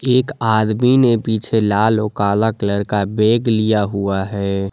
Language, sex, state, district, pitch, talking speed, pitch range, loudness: Hindi, male, Jharkhand, Palamu, 110 Hz, 165 wpm, 100-115 Hz, -17 LUFS